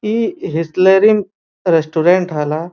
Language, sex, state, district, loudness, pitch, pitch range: Bhojpuri, male, Uttar Pradesh, Varanasi, -14 LUFS, 180 Hz, 160-200 Hz